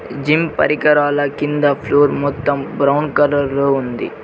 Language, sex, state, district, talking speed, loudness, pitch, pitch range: Telugu, male, Telangana, Mahabubabad, 125 wpm, -16 LUFS, 145 Hz, 140-145 Hz